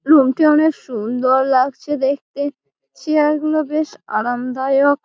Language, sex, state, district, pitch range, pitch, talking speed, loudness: Bengali, female, West Bengal, Malda, 255-305 Hz, 280 Hz, 120 wpm, -17 LUFS